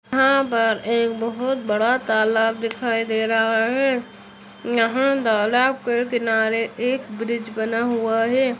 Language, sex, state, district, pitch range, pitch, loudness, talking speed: Hindi, female, Uttar Pradesh, Etah, 225-250 Hz, 230 Hz, -21 LUFS, 135 wpm